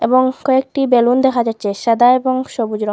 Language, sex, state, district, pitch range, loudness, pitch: Bengali, female, Assam, Hailakandi, 230-260 Hz, -15 LUFS, 245 Hz